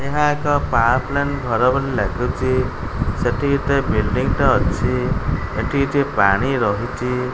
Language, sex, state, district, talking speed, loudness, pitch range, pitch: Odia, male, Odisha, Khordha, 130 wpm, -19 LUFS, 120-140 Hz, 130 Hz